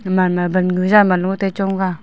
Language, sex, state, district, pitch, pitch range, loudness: Wancho, female, Arunachal Pradesh, Longding, 185 Hz, 180-195 Hz, -16 LUFS